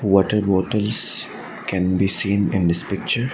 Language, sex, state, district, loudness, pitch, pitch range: English, male, Assam, Sonitpur, -20 LUFS, 100 Hz, 95-105 Hz